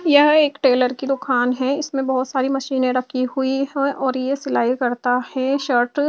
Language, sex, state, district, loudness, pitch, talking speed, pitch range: Hindi, female, Maharashtra, Gondia, -19 LUFS, 265 Hz, 195 wpm, 255-275 Hz